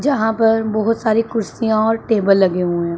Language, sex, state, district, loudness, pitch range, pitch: Hindi, female, Punjab, Pathankot, -16 LUFS, 195-225 Hz, 220 Hz